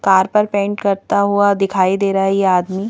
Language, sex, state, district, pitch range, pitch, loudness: Hindi, female, Madhya Pradesh, Bhopal, 190-200 Hz, 195 Hz, -15 LUFS